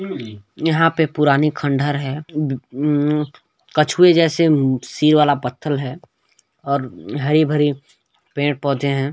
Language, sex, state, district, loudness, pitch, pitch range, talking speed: Hindi, male, Chhattisgarh, Balrampur, -18 LUFS, 145 Hz, 140-155 Hz, 120 wpm